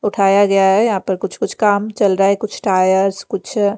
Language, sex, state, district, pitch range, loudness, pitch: Hindi, female, Bihar, Patna, 195-210 Hz, -15 LUFS, 200 Hz